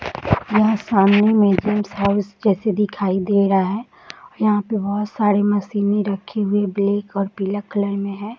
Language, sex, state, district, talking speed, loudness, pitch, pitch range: Hindi, female, Bihar, Saharsa, 165 wpm, -19 LUFS, 205 Hz, 200-210 Hz